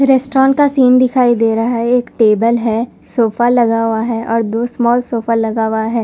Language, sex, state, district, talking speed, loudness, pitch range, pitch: Hindi, female, Punjab, Fazilka, 210 wpm, -13 LUFS, 225-245 Hz, 235 Hz